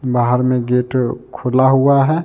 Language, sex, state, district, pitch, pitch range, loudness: Hindi, male, Jharkhand, Deoghar, 125 Hz, 125-135 Hz, -15 LUFS